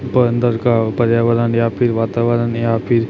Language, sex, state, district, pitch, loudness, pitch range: Hindi, male, Chhattisgarh, Raipur, 115 Hz, -16 LUFS, 115-120 Hz